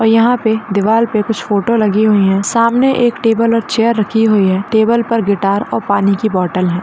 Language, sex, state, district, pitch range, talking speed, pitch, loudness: Hindi, female, Rajasthan, Churu, 200-230 Hz, 230 wpm, 220 Hz, -13 LUFS